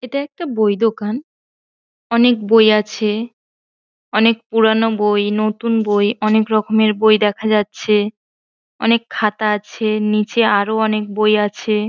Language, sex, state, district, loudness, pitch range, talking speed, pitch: Bengali, female, West Bengal, Paschim Medinipur, -16 LUFS, 210-225 Hz, 120 wpm, 215 Hz